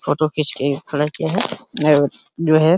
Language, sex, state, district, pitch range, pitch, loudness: Hindi, male, Uttar Pradesh, Hamirpur, 145-160 Hz, 155 Hz, -19 LUFS